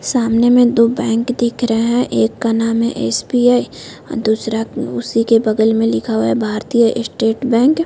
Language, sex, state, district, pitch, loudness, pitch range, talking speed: Hindi, female, Chhattisgarh, Korba, 230 Hz, -15 LUFS, 220-240 Hz, 185 wpm